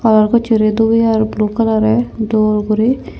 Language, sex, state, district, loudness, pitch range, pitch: Chakma, female, Tripura, Unakoti, -14 LUFS, 215-230 Hz, 220 Hz